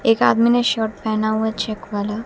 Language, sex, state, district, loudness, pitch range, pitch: Hindi, female, Haryana, Jhajjar, -19 LUFS, 215-225 Hz, 220 Hz